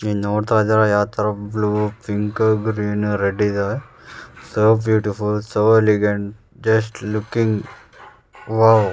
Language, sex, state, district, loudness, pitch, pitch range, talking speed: Kannada, male, Karnataka, Raichur, -19 LUFS, 105 Hz, 105-110 Hz, 120 wpm